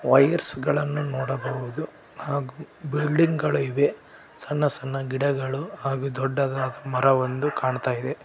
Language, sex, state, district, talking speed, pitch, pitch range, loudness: Kannada, male, Karnataka, Koppal, 110 wpm, 135 Hz, 130-150 Hz, -23 LUFS